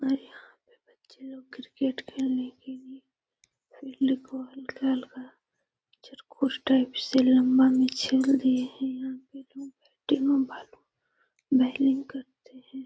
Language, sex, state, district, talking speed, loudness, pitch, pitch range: Hindi, female, Bihar, Gaya, 50 wpm, -26 LUFS, 265 Hz, 260-270 Hz